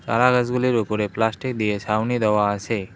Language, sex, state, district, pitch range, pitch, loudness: Bengali, male, West Bengal, Cooch Behar, 105-120 Hz, 110 Hz, -21 LUFS